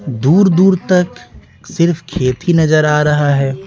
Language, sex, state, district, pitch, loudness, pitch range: Hindi, male, Bihar, West Champaran, 155 Hz, -13 LUFS, 145-180 Hz